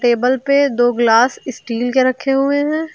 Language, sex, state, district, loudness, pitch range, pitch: Hindi, female, Uttar Pradesh, Lucknow, -15 LUFS, 240-280 Hz, 255 Hz